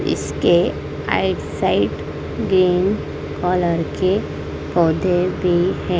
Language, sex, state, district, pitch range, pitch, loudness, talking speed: Hindi, female, Madhya Pradesh, Dhar, 175-185 Hz, 180 Hz, -19 LUFS, 90 wpm